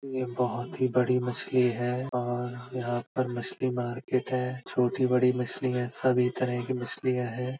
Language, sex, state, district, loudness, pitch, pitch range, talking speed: Hindi, male, Uttar Pradesh, Budaun, -29 LUFS, 125 Hz, 125-130 Hz, 150 wpm